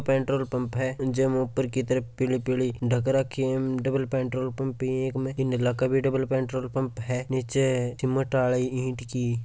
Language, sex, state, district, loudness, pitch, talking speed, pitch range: Marwari, male, Rajasthan, Churu, -27 LUFS, 130 Hz, 190 wpm, 125-130 Hz